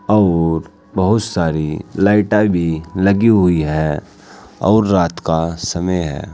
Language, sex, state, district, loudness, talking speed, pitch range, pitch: Hindi, male, Uttar Pradesh, Saharanpur, -16 LUFS, 125 wpm, 80-100 Hz, 90 Hz